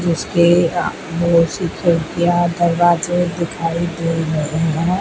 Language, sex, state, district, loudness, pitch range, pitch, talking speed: Hindi, female, Rajasthan, Bikaner, -17 LUFS, 165-175 Hz, 170 Hz, 105 wpm